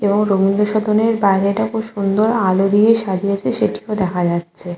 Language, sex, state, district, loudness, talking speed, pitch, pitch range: Bengali, female, West Bengal, Kolkata, -16 LUFS, 165 wpm, 200 Hz, 190-215 Hz